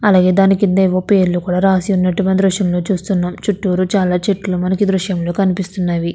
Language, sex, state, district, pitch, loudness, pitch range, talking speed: Telugu, female, Andhra Pradesh, Krishna, 185 Hz, -15 LUFS, 180-195 Hz, 135 wpm